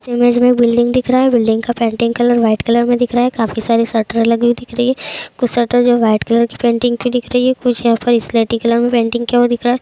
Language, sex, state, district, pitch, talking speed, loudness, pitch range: Hindi, female, Uttar Pradesh, Jalaun, 240 Hz, 285 wpm, -14 LUFS, 230-245 Hz